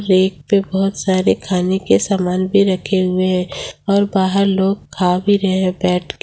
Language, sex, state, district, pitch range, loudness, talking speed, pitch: Hindi, female, Jharkhand, Ranchi, 185-195 Hz, -16 LUFS, 190 wpm, 190 Hz